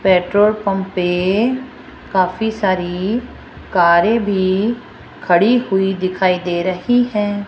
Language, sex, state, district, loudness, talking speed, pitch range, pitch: Hindi, female, Rajasthan, Jaipur, -16 LUFS, 105 wpm, 185-220 Hz, 195 Hz